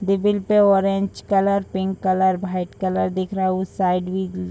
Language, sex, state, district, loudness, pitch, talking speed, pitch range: Hindi, female, Bihar, Madhepura, -21 LUFS, 190 Hz, 200 wpm, 185-195 Hz